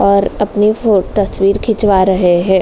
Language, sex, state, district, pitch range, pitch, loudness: Hindi, female, Uttar Pradesh, Jalaun, 190-210 Hz, 200 Hz, -13 LUFS